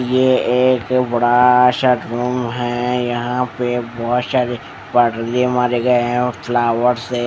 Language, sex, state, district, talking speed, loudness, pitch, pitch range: Hindi, male, Odisha, Khordha, 150 wpm, -16 LUFS, 125 Hz, 120-125 Hz